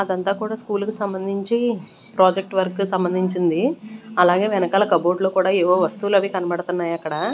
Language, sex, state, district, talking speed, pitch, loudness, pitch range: Telugu, female, Andhra Pradesh, Manyam, 145 wpm, 190 Hz, -20 LUFS, 180-205 Hz